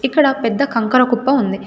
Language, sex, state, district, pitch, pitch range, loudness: Telugu, female, Telangana, Komaram Bheem, 255 Hz, 230-275 Hz, -15 LUFS